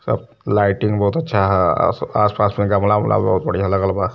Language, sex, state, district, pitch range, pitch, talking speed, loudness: Hindi, male, Uttar Pradesh, Varanasi, 95-105 Hz, 100 Hz, 200 wpm, -17 LUFS